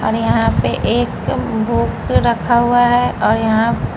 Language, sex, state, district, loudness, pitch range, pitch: Hindi, female, Bihar, Patna, -15 LUFS, 220-240 Hz, 230 Hz